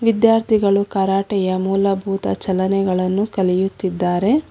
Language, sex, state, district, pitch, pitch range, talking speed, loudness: Kannada, female, Karnataka, Bangalore, 195 Hz, 185-205 Hz, 65 wpm, -18 LUFS